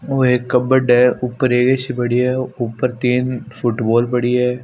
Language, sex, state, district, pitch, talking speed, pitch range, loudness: Marwari, male, Rajasthan, Nagaur, 125 Hz, 170 wpm, 120-125 Hz, -17 LUFS